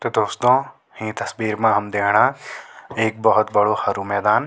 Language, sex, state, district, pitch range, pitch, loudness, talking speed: Garhwali, male, Uttarakhand, Tehri Garhwal, 105-110 Hz, 105 Hz, -19 LUFS, 160 wpm